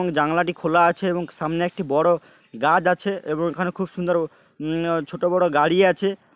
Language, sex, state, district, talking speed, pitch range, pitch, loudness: Bengali, male, West Bengal, Paschim Medinipur, 180 wpm, 165-180 Hz, 175 Hz, -21 LUFS